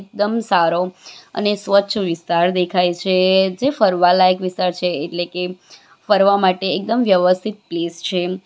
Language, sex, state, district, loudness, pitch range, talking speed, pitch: Gujarati, female, Gujarat, Valsad, -17 LUFS, 180-200 Hz, 140 wpm, 185 Hz